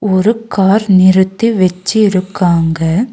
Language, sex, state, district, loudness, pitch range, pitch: Tamil, female, Tamil Nadu, Nilgiris, -11 LUFS, 185-210 Hz, 190 Hz